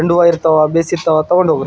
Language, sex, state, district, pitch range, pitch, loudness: Kannada, male, Karnataka, Raichur, 155-175 Hz, 165 Hz, -13 LUFS